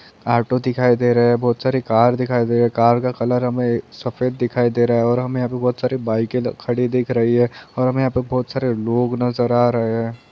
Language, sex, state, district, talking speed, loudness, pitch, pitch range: Hindi, male, Telangana, Nalgonda, 210 wpm, -18 LUFS, 120 Hz, 120-125 Hz